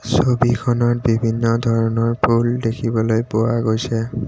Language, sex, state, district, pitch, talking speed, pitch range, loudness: Assamese, male, Assam, Kamrup Metropolitan, 115 Hz, 100 wpm, 115-120 Hz, -18 LUFS